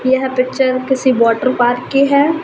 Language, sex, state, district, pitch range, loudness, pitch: Hindi, female, Uttar Pradesh, Ghazipur, 255-270 Hz, -14 LUFS, 260 Hz